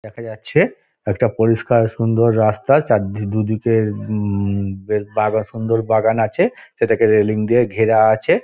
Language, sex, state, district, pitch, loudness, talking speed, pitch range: Bengali, male, West Bengal, Dakshin Dinajpur, 110 Hz, -17 LUFS, 140 wpm, 105-115 Hz